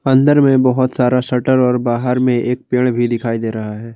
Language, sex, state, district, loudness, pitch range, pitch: Hindi, male, Jharkhand, Garhwa, -15 LUFS, 120-130 Hz, 125 Hz